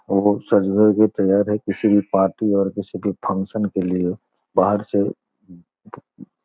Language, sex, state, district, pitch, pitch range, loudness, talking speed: Hindi, male, Bihar, Gopalganj, 100 Hz, 95-105 Hz, -19 LUFS, 150 wpm